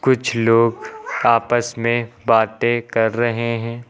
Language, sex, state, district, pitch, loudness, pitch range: Hindi, male, Uttar Pradesh, Lucknow, 115 Hz, -18 LUFS, 115-120 Hz